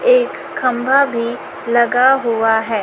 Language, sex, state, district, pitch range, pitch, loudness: Hindi, female, Chhattisgarh, Raipur, 230-265 Hz, 240 Hz, -15 LUFS